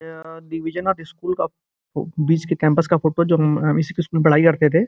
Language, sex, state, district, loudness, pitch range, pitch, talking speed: Hindi, male, Uttar Pradesh, Gorakhpur, -19 LUFS, 160-170 Hz, 165 Hz, 235 wpm